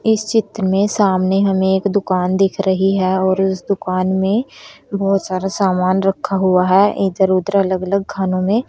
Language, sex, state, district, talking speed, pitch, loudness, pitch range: Hindi, female, Haryana, Rohtak, 180 wpm, 195 Hz, -16 LUFS, 185-200 Hz